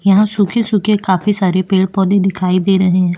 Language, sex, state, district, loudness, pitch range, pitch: Hindi, female, Uttarakhand, Tehri Garhwal, -14 LUFS, 185-205 Hz, 195 Hz